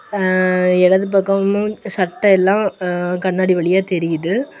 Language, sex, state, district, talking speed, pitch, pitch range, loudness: Tamil, female, Tamil Nadu, Kanyakumari, 115 wpm, 185 Hz, 180-200 Hz, -16 LUFS